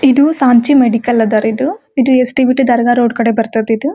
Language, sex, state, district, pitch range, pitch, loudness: Kannada, female, Karnataka, Gulbarga, 230-265 Hz, 245 Hz, -12 LUFS